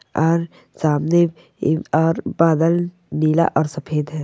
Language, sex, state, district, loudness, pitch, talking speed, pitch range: Hindi, female, Rajasthan, Churu, -19 LUFS, 165 Hz, 115 wpm, 155-170 Hz